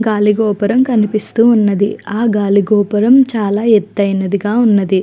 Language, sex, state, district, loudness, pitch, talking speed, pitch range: Telugu, female, Andhra Pradesh, Chittoor, -13 LUFS, 210 Hz, 120 wpm, 200-225 Hz